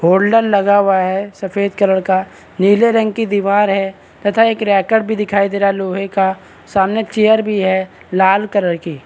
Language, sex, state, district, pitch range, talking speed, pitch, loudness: Hindi, male, Maharashtra, Chandrapur, 190-210 Hz, 190 wpm, 200 Hz, -15 LUFS